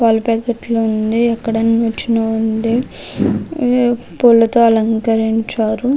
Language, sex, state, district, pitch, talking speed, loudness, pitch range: Telugu, female, Andhra Pradesh, Krishna, 230 Hz, 100 wpm, -15 LUFS, 225-235 Hz